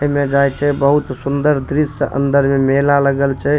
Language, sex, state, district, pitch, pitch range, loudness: Maithili, male, Bihar, Supaul, 140 Hz, 140-145 Hz, -15 LUFS